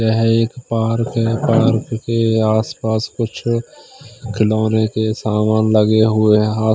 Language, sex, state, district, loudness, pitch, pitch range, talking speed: Hindi, male, Chandigarh, Chandigarh, -16 LUFS, 110 Hz, 110-115 Hz, 135 wpm